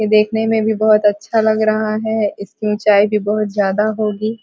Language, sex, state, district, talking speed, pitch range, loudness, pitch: Hindi, female, Bihar, Vaishali, 215 wpm, 210-220 Hz, -16 LUFS, 215 Hz